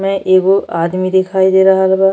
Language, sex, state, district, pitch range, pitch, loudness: Bhojpuri, female, Uttar Pradesh, Deoria, 185-195 Hz, 190 Hz, -12 LUFS